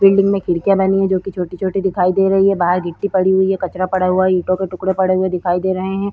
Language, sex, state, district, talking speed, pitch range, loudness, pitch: Hindi, female, Uttar Pradesh, Jyotiba Phule Nagar, 295 wpm, 185-195 Hz, -16 LUFS, 190 Hz